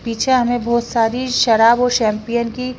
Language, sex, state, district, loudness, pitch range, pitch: Hindi, female, Haryana, Rohtak, -16 LUFS, 230-250 Hz, 235 Hz